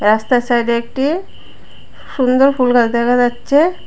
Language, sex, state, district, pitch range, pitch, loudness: Bengali, female, Tripura, West Tripura, 235-275 Hz, 245 Hz, -14 LUFS